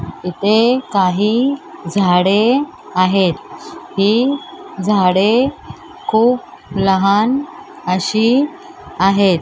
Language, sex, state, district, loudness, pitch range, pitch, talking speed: Marathi, male, Maharashtra, Mumbai Suburban, -15 LUFS, 190-255 Hz, 210 Hz, 65 wpm